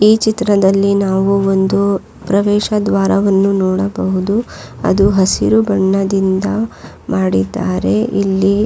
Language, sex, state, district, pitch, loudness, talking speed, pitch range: Kannada, female, Karnataka, Raichur, 195 Hz, -14 LUFS, 85 wpm, 190-205 Hz